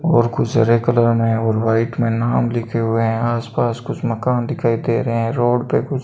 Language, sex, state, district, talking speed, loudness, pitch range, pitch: Hindi, male, Rajasthan, Bikaner, 240 wpm, -18 LUFS, 115-120 Hz, 115 Hz